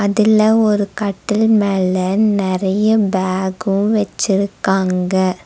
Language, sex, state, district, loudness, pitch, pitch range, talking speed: Tamil, female, Tamil Nadu, Nilgiris, -16 LUFS, 200 Hz, 190-215 Hz, 75 wpm